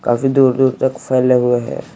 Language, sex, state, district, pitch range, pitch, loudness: Hindi, male, Chhattisgarh, Raigarh, 125-130 Hz, 130 Hz, -15 LUFS